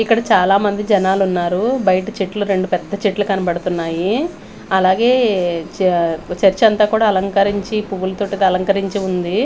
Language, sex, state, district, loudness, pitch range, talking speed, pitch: Telugu, female, Andhra Pradesh, Manyam, -16 LUFS, 185-205 Hz, 115 wpm, 195 Hz